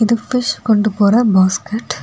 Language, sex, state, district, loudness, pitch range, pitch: Tamil, female, Tamil Nadu, Kanyakumari, -15 LUFS, 210-235 Hz, 220 Hz